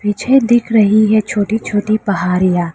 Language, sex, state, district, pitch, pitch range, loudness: Hindi, female, Arunachal Pradesh, Lower Dibang Valley, 210 Hz, 200-220 Hz, -13 LUFS